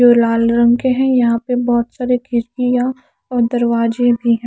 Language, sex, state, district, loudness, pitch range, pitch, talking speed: Hindi, female, Haryana, Charkhi Dadri, -15 LUFS, 235-250 Hz, 240 Hz, 185 wpm